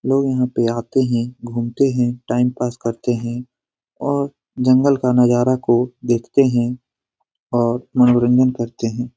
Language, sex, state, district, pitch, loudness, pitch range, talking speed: Hindi, male, Bihar, Lakhisarai, 125 Hz, -18 LUFS, 120-130 Hz, 145 wpm